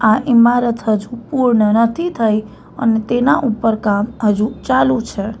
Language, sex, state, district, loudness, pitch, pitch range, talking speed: Gujarati, female, Gujarat, Valsad, -15 LUFS, 230 Hz, 215-245 Hz, 145 wpm